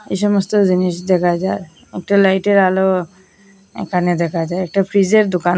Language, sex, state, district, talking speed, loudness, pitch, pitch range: Bengali, female, Assam, Hailakandi, 150 wpm, -16 LUFS, 190 Hz, 180-195 Hz